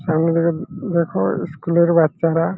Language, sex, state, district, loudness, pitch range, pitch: Bengali, male, West Bengal, Malda, -18 LUFS, 165-170 Hz, 170 Hz